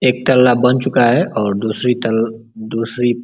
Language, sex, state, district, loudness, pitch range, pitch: Hindi, male, Uttar Pradesh, Ghazipur, -15 LUFS, 110-125 Hz, 120 Hz